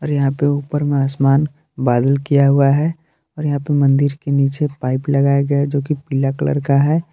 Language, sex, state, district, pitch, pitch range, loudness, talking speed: Hindi, male, Jharkhand, Palamu, 140 Hz, 140-150 Hz, -17 LUFS, 210 wpm